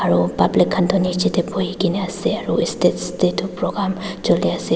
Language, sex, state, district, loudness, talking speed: Nagamese, female, Nagaland, Dimapur, -19 LUFS, 165 wpm